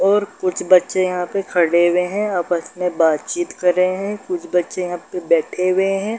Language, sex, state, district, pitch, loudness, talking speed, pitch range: Hindi, male, Bihar, Darbhanga, 185 Hz, -19 LUFS, 205 wpm, 180-205 Hz